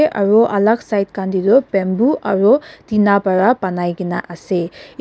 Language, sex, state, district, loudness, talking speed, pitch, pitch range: Nagamese, female, Nagaland, Dimapur, -16 LUFS, 130 wpm, 200 Hz, 185-230 Hz